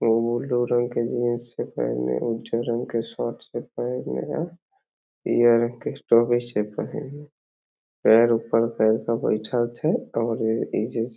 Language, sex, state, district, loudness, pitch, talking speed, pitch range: Maithili, male, Bihar, Samastipur, -24 LUFS, 115 Hz, 100 wpm, 115-120 Hz